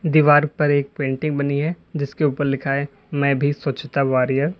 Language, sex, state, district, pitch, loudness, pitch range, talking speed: Hindi, male, Uttar Pradesh, Lalitpur, 145 Hz, -20 LUFS, 140-150 Hz, 195 wpm